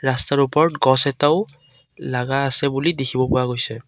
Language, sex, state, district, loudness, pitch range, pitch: Assamese, male, Assam, Kamrup Metropolitan, -19 LUFS, 130-140 Hz, 135 Hz